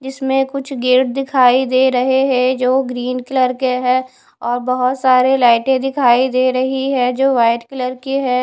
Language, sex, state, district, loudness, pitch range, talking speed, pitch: Hindi, female, Punjab, Fazilka, -15 LUFS, 250-265 Hz, 180 wpm, 255 Hz